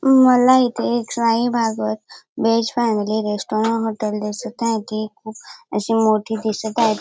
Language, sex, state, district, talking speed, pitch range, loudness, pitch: Marathi, female, Maharashtra, Dhule, 135 wpm, 215-235 Hz, -19 LUFS, 225 Hz